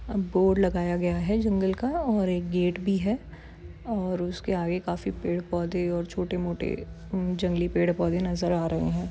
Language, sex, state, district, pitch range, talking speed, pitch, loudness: Hindi, female, Chhattisgarh, Bilaspur, 175-190 Hz, 170 wpm, 180 Hz, -27 LUFS